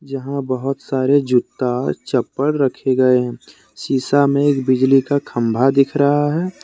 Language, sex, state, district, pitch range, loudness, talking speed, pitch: Hindi, male, Jharkhand, Deoghar, 130-140 Hz, -17 LUFS, 155 wpm, 135 Hz